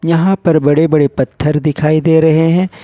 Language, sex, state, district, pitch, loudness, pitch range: Hindi, male, Jharkhand, Ranchi, 160 Hz, -12 LUFS, 150-165 Hz